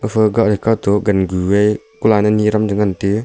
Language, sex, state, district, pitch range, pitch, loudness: Wancho, male, Arunachal Pradesh, Longding, 100-110 Hz, 105 Hz, -15 LUFS